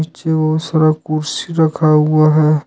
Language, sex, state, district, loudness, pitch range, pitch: Hindi, male, Jharkhand, Ranchi, -14 LUFS, 155-160 Hz, 155 Hz